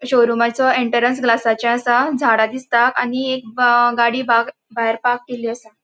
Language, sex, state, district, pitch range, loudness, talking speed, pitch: Konkani, female, Goa, North and South Goa, 235-250 Hz, -17 LUFS, 155 wpm, 240 Hz